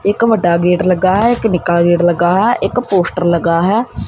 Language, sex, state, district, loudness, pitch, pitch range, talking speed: Punjabi, male, Punjab, Kapurthala, -13 LUFS, 185 Hz, 175-215 Hz, 205 wpm